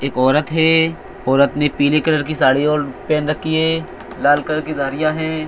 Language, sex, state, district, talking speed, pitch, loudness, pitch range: Hindi, male, Bihar, Araria, 195 wpm, 155 Hz, -17 LUFS, 145-160 Hz